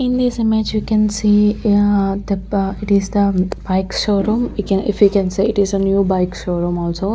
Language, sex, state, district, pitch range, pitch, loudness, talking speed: English, female, Chandigarh, Chandigarh, 195-210 Hz, 200 Hz, -17 LUFS, 210 wpm